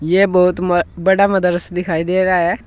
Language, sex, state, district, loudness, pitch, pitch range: Hindi, male, Uttar Pradesh, Saharanpur, -15 LUFS, 180 Hz, 175-185 Hz